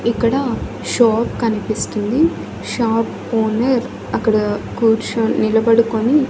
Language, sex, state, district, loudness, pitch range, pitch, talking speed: Telugu, female, Andhra Pradesh, Annamaya, -17 LUFS, 220-235 Hz, 230 Hz, 75 wpm